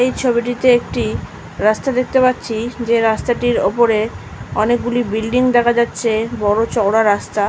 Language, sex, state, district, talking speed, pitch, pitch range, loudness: Bengali, female, West Bengal, Malda, 130 wpm, 235 Hz, 220-245 Hz, -16 LUFS